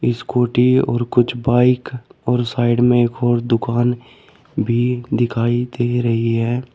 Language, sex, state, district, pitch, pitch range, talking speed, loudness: Hindi, male, Uttar Pradesh, Shamli, 120 Hz, 120-125 Hz, 135 wpm, -17 LUFS